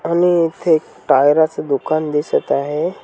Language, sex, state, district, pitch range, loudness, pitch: Marathi, male, Maharashtra, Washim, 145-165 Hz, -16 LUFS, 155 Hz